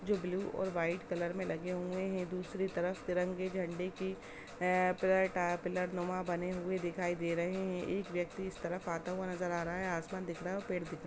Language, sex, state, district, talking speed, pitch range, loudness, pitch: Hindi, female, Bihar, Samastipur, 215 wpm, 175-185 Hz, -37 LUFS, 180 Hz